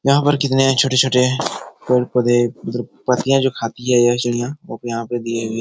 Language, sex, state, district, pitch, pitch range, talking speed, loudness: Hindi, male, Bihar, Jahanabad, 125 Hz, 120-135 Hz, 180 wpm, -18 LUFS